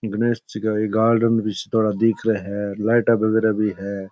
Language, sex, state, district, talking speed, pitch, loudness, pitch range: Rajasthani, male, Rajasthan, Churu, 205 wpm, 110 Hz, -20 LUFS, 105-115 Hz